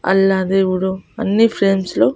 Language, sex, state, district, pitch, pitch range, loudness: Telugu, female, Andhra Pradesh, Annamaya, 195 Hz, 190-200 Hz, -16 LUFS